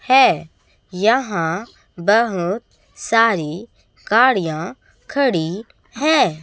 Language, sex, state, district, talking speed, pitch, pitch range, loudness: Hindi, female, Chhattisgarh, Raipur, 65 wpm, 220 Hz, 175-255 Hz, -18 LUFS